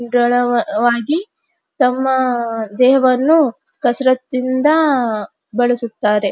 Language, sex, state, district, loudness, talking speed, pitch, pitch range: Kannada, female, Karnataka, Dharwad, -16 LUFS, 45 wpm, 255 Hz, 240-270 Hz